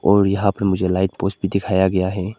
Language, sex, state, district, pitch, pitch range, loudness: Hindi, male, Arunachal Pradesh, Lower Dibang Valley, 95 Hz, 95-100 Hz, -19 LUFS